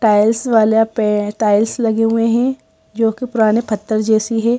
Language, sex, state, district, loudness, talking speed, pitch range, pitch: Hindi, female, Madhya Pradesh, Bhopal, -15 LUFS, 145 wpm, 215-230 Hz, 225 Hz